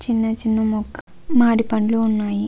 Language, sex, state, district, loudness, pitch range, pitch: Telugu, female, Andhra Pradesh, Visakhapatnam, -19 LUFS, 215-230 Hz, 225 Hz